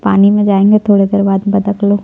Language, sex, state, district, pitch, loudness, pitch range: Hindi, female, Chhattisgarh, Jashpur, 200 Hz, -11 LUFS, 200-205 Hz